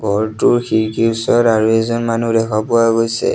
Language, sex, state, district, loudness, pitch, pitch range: Assamese, male, Assam, Sonitpur, -15 LUFS, 115 Hz, 110-115 Hz